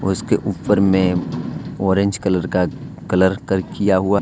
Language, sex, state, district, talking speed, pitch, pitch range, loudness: Hindi, male, Jharkhand, Deoghar, 155 wpm, 95 Hz, 95-100 Hz, -19 LUFS